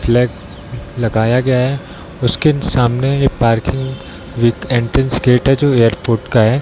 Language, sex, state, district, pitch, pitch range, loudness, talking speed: Hindi, male, Bihar, Darbhanga, 120 Hz, 115-130 Hz, -15 LUFS, 145 wpm